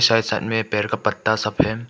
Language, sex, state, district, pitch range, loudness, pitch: Hindi, male, Arunachal Pradesh, Papum Pare, 110-115 Hz, -21 LUFS, 110 Hz